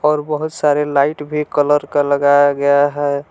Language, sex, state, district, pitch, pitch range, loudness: Hindi, male, Jharkhand, Palamu, 145 Hz, 145-150 Hz, -15 LUFS